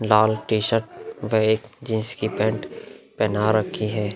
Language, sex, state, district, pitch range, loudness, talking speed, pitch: Hindi, male, Bihar, Vaishali, 105-110 Hz, -23 LUFS, 130 wpm, 110 Hz